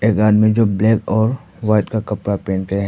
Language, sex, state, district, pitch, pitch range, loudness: Hindi, male, Arunachal Pradesh, Papum Pare, 105 Hz, 100-110 Hz, -17 LUFS